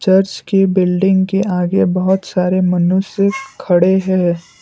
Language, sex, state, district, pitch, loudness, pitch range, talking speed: Hindi, male, Assam, Kamrup Metropolitan, 190 Hz, -15 LUFS, 180-195 Hz, 130 wpm